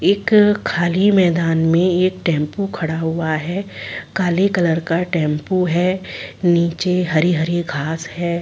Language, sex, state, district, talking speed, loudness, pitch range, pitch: Hindi, female, Chhattisgarh, Sarguja, 130 wpm, -18 LUFS, 165-185 Hz, 175 Hz